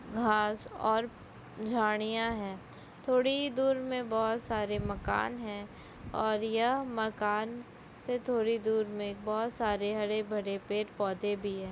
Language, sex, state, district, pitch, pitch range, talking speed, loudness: Hindi, female, Bihar, Sitamarhi, 220 Hz, 210-235 Hz, 135 wpm, -32 LUFS